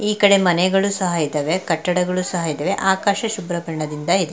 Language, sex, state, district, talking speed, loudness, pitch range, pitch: Kannada, female, Karnataka, Mysore, 165 wpm, -19 LUFS, 165-195 Hz, 180 Hz